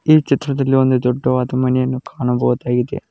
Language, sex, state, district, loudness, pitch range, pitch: Kannada, male, Karnataka, Koppal, -17 LUFS, 125-135 Hz, 130 Hz